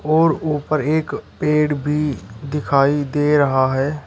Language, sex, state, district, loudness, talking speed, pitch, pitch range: Hindi, male, Uttar Pradesh, Shamli, -18 LUFS, 135 wpm, 145 Hz, 140-150 Hz